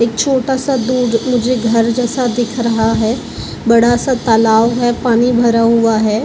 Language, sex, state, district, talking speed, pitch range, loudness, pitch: Hindi, female, Maharashtra, Mumbai Suburban, 170 wpm, 230-250 Hz, -13 LUFS, 235 Hz